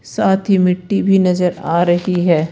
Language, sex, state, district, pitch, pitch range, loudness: Hindi, female, Rajasthan, Jaipur, 180 Hz, 175-195 Hz, -15 LUFS